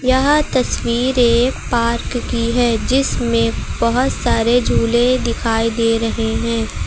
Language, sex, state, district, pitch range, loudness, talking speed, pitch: Hindi, female, Uttar Pradesh, Lucknow, 225-250 Hz, -16 LUFS, 120 wpm, 235 Hz